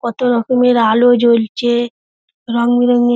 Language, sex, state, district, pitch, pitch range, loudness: Bengali, female, West Bengal, Dakshin Dinajpur, 240 Hz, 235-245 Hz, -13 LUFS